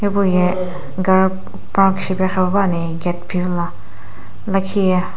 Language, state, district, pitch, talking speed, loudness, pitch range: Sumi, Nagaland, Dimapur, 185 Hz, 115 wpm, -18 LUFS, 175-190 Hz